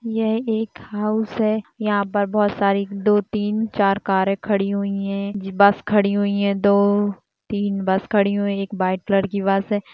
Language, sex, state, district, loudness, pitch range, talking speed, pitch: Hindi, female, Uttarakhand, Tehri Garhwal, -20 LUFS, 195-210 Hz, 185 wpm, 200 Hz